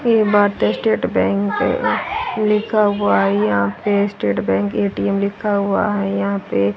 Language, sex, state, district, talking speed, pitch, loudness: Hindi, female, Haryana, Rohtak, 160 wpm, 195 Hz, -18 LUFS